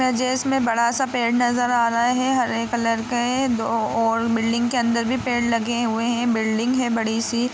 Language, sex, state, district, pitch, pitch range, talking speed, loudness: Hindi, female, Jharkhand, Sahebganj, 235 Hz, 230-245 Hz, 205 wpm, -21 LUFS